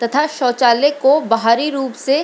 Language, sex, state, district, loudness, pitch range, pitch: Hindi, female, Bihar, Lakhisarai, -15 LUFS, 240-290 Hz, 270 Hz